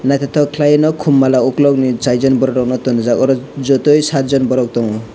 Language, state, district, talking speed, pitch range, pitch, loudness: Kokborok, Tripura, West Tripura, 175 wpm, 125-140 Hz, 135 Hz, -13 LUFS